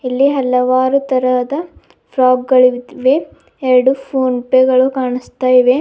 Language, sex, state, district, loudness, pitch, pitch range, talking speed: Kannada, female, Karnataka, Bidar, -14 LUFS, 255 Hz, 250-265 Hz, 125 wpm